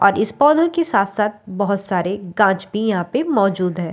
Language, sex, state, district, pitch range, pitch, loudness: Hindi, female, Delhi, New Delhi, 190-220 Hz, 200 Hz, -18 LUFS